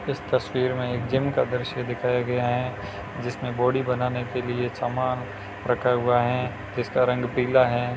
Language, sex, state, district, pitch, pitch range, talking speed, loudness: Hindi, male, Rajasthan, Churu, 125 Hz, 120-125 Hz, 175 wpm, -25 LUFS